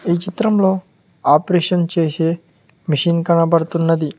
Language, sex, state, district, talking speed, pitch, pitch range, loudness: Telugu, male, Telangana, Mahabubabad, 85 wpm, 170 Hz, 165-180 Hz, -17 LUFS